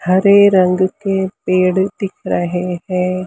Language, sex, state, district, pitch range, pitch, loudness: Hindi, female, Maharashtra, Mumbai Suburban, 180-195 Hz, 185 Hz, -15 LUFS